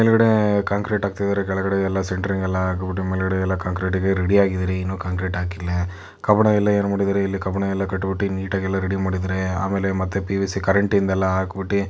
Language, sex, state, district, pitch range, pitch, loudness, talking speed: Kannada, male, Karnataka, Chamarajanagar, 95-100 Hz, 95 Hz, -21 LUFS, 155 wpm